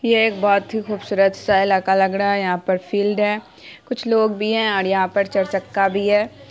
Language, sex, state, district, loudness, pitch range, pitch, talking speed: Hindi, female, Bihar, Saharsa, -19 LUFS, 195-210 Hz, 200 Hz, 230 wpm